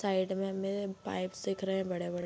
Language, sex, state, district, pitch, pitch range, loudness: Hindi, female, Bihar, Bhagalpur, 190 Hz, 185-195 Hz, -35 LUFS